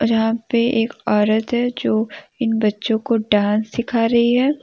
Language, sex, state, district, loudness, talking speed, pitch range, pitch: Hindi, female, Jharkhand, Deoghar, -19 LUFS, 180 wpm, 220-240 Hz, 230 Hz